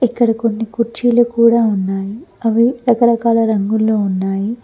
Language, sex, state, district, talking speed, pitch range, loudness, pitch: Telugu, female, Telangana, Mahabubabad, 115 wpm, 215-235 Hz, -15 LUFS, 230 Hz